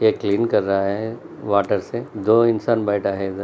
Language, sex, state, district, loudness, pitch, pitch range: Hindi, male, Maharashtra, Chandrapur, -20 LUFS, 105 Hz, 100-110 Hz